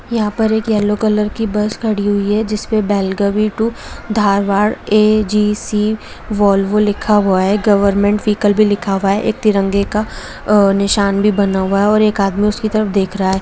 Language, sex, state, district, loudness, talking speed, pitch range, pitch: Hindi, female, Jharkhand, Jamtara, -15 LUFS, 180 wpm, 200-215 Hz, 210 Hz